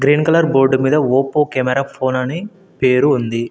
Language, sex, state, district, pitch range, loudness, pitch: Telugu, male, Telangana, Mahabubabad, 130-150 Hz, -15 LUFS, 135 Hz